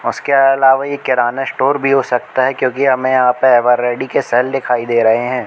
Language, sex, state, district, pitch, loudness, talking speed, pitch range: Hindi, male, Madhya Pradesh, Katni, 130 Hz, -14 LUFS, 230 wpm, 125-135 Hz